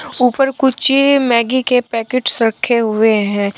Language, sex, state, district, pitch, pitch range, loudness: Hindi, male, Uttar Pradesh, Shamli, 245 Hz, 225-260 Hz, -14 LUFS